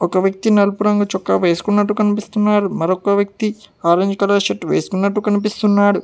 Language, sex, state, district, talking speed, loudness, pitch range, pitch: Telugu, male, Telangana, Hyderabad, 140 wpm, -17 LUFS, 195-210 Hz, 205 Hz